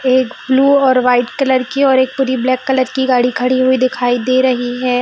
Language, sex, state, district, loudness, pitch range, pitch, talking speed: Hindi, female, Jharkhand, Sahebganj, -14 LUFS, 250-260 Hz, 255 Hz, 215 wpm